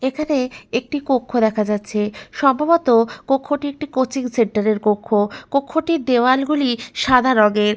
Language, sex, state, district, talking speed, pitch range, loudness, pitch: Bengali, female, West Bengal, Malda, 130 wpm, 215-280 Hz, -18 LUFS, 255 Hz